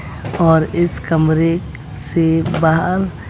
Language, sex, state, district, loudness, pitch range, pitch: Hindi, female, Bihar, West Champaran, -16 LUFS, 160-170 Hz, 165 Hz